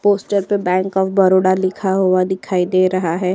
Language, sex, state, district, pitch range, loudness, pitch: Hindi, female, Uttar Pradesh, Jyotiba Phule Nagar, 185-195 Hz, -16 LUFS, 185 Hz